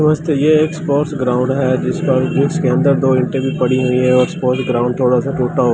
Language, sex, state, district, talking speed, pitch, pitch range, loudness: Hindi, male, Delhi, New Delhi, 200 wpm, 130 Hz, 125-145 Hz, -15 LUFS